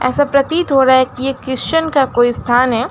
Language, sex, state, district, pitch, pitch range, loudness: Hindi, female, West Bengal, Alipurduar, 260 Hz, 255-280 Hz, -14 LUFS